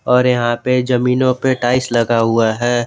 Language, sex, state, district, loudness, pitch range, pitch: Hindi, male, Jharkhand, Garhwa, -15 LUFS, 120-125 Hz, 125 Hz